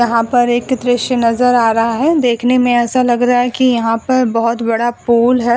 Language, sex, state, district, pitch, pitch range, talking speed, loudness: Hindi, female, Uttar Pradesh, Budaun, 240 Hz, 235-250 Hz, 225 wpm, -13 LUFS